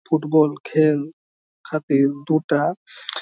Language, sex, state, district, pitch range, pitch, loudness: Bengali, male, West Bengal, Jhargram, 140-155 Hz, 150 Hz, -20 LUFS